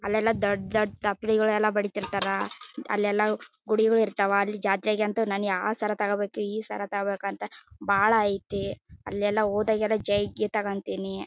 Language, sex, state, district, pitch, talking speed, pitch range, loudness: Kannada, female, Karnataka, Bellary, 205 Hz, 135 wpm, 200-215 Hz, -26 LUFS